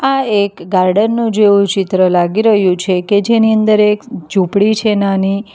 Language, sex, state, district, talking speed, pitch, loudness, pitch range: Gujarati, female, Gujarat, Valsad, 175 wpm, 200 Hz, -12 LUFS, 190-215 Hz